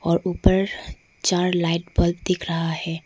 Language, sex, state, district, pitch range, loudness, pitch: Hindi, female, Arunachal Pradesh, Lower Dibang Valley, 170-180 Hz, -22 LUFS, 170 Hz